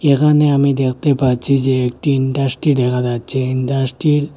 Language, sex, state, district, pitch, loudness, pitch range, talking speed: Bengali, male, Assam, Hailakandi, 135 Hz, -16 LUFS, 130-145 Hz, 150 wpm